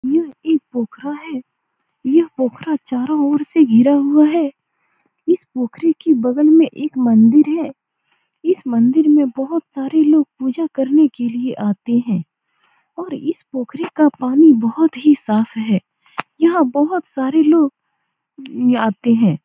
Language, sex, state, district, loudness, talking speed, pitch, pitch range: Hindi, female, Bihar, Saran, -16 LUFS, 145 wpm, 285 Hz, 250-315 Hz